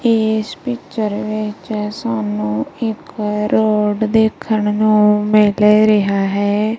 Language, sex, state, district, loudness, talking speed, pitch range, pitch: Punjabi, female, Punjab, Kapurthala, -16 LUFS, 95 wpm, 210-220 Hz, 210 Hz